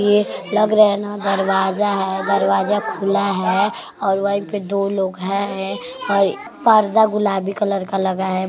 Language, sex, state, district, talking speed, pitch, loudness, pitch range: Bhojpuri, female, Uttar Pradesh, Deoria, 160 wpm, 200 Hz, -18 LUFS, 195-205 Hz